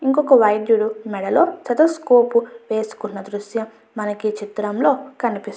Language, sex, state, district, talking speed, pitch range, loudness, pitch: Telugu, female, Andhra Pradesh, Guntur, 120 wpm, 210-260 Hz, -19 LUFS, 225 Hz